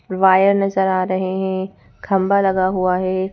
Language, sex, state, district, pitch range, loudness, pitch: Hindi, female, Madhya Pradesh, Bhopal, 185-195 Hz, -17 LUFS, 190 Hz